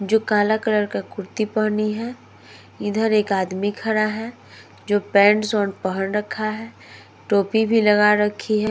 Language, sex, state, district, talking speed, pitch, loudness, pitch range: Hindi, female, Uttar Pradesh, Muzaffarnagar, 150 wpm, 215 Hz, -20 LUFS, 205-220 Hz